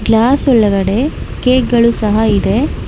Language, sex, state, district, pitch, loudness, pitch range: Kannada, female, Karnataka, Bangalore, 235 Hz, -12 LUFS, 215-255 Hz